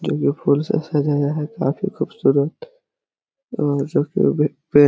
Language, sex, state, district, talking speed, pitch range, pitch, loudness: Hindi, male, Chhattisgarh, Korba, 135 wpm, 145-200 Hz, 150 Hz, -20 LUFS